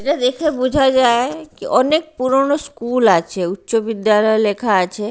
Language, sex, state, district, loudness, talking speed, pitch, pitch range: Bengali, female, Odisha, Nuapada, -16 LUFS, 130 wpm, 245 Hz, 210-275 Hz